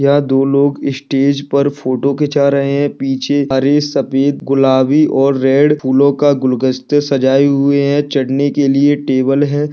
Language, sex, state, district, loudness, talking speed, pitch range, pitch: Hindi, male, Bihar, Kishanganj, -13 LUFS, 160 wpm, 135-145 Hz, 140 Hz